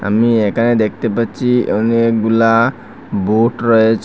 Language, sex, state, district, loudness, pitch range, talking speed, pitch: Bengali, male, Assam, Hailakandi, -14 LUFS, 110-115 Hz, 105 wpm, 115 Hz